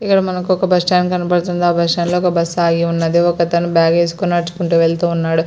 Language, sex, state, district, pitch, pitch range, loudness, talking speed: Telugu, female, Andhra Pradesh, Srikakulam, 175 Hz, 170-180 Hz, -15 LUFS, 200 wpm